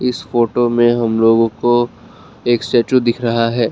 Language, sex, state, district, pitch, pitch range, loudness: Hindi, male, Assam, Kamrup Metropolitan, 120 Hz, 115-120 Hz, -15 LUFS